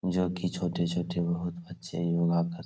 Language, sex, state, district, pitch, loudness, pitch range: Hindi, male, Bihar, Supaul, 85 Hz, -30 LUFS, 85-90 Hz